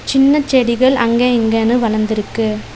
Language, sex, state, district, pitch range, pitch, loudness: Tamil, female, Tamil Nadu, Nilgiris, 220-260 Hz, 235 Hz, -14 LUFS